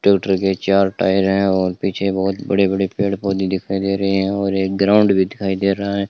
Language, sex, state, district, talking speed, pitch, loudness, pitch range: Hindi, male, Rajasthan, Bikaner, 235 wpm, 95 Hz, -18 LUFS, 95-100 Hz